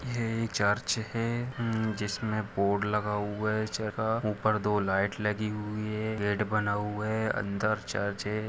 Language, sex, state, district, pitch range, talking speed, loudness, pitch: Hindi, male, Jharkhand, Sahebganj, 105-110 Hz, 160 wpm, -30 LUFS, 105 Hz